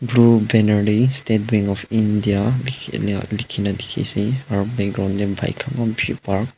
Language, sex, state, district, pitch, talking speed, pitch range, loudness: Nagamese, male, Nagaland, Dimapur, 110 Hz, 180 wpm, 100-120 Hz, -19 LUFS